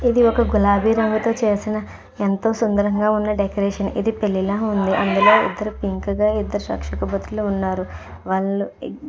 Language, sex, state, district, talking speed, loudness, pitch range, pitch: Telugu, female, Andhra Pradesh, Krishna, 145 wpm, -20 LUFS, 200-215 Hz, 205 Hz